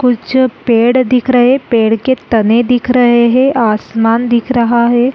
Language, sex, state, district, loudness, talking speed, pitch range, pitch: Hindi, female, Chhattisgarh, Rajnandgaon, -11 LUFS, 175 wpm, 230-255 Hz, 240 Hz